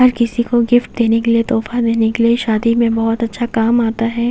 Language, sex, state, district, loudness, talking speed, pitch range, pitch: Hindi, female, Haryana, Jhajjar, -15 LUFS, 235 wpm, 225-235 Hz, 230 Hz